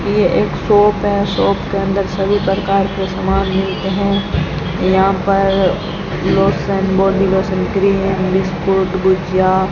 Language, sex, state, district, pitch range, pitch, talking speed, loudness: Hindi, female, Rajasthan, Bikaner, 190-195 Hz, 195 Hz, 125 wpm, -15 LUFS